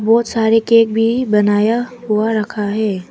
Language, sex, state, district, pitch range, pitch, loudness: Hindi, female, Arunachal Pradesh, Papum Pare, 210-230 Hz, 220 Hz, -15 LUFS